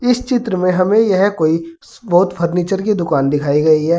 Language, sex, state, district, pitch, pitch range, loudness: Hindi, male, Uttar Pradesh, Saharanpur, 180 Hz, 165-205 Hz, -15 LUFS